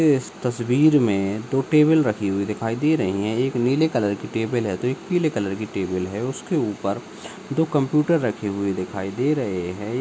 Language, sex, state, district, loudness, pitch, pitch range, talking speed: Hindi, male, Rajasthan, Nagaur, -22 LUFS, 120 Hz, 100-145 Hz, 210 wpm